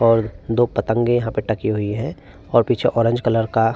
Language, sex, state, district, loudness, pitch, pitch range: Hindi, male, Uttar Pradesh, Varanasi, -20 LUFS, 115 Hz, 110-120 Hz